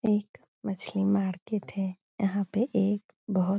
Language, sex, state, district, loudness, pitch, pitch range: Hindi, female, Bihar, Supaul, -30 LUFS, 200 Hz, 195-210 Hz